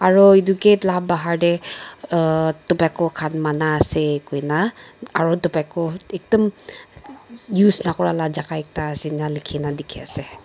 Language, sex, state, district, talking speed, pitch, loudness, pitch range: Nagamese, female, Nagaland, Dimapur, 145 wpm, 170 Hz, -20 LUFS, 155-185 Hz